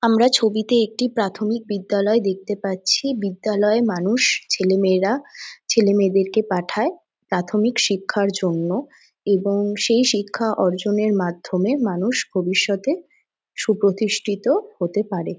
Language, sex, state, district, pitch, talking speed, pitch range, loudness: Bengali, female, West Bengal, Jhargram, 210 Hz, 115 wpm, 195-230 Hz, -20 LUFS